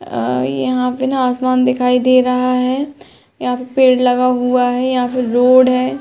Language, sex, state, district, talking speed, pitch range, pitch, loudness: Hindi, female, Uttar Pradesh, Hamirpur, 190 wpm, 250-255 Hz, 255 Hz, -14 LUFS